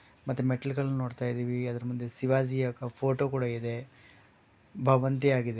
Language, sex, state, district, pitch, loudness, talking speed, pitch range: Kannada, male, Karnataka, Bellary, 130 Hz, -30 LUFS, 130 wpm, 120-135 Hz